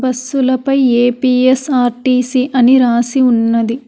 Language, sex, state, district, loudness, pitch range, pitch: Telugu, female, Telangana, Hyderabad, -12 LUFS, 245-260 Hz, 255 Hz